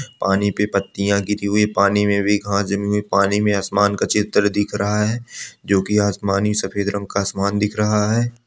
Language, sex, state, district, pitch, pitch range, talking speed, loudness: Angika, male, Bihar, Samastipur, 100 Hz, 100-105 Hz, 220 wpm, -19 LUFS